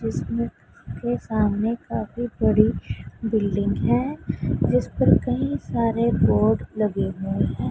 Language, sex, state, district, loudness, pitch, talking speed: Hindi, female, Punjab, Pathankot, -23 LUFS, 195 Hz, 110 wpm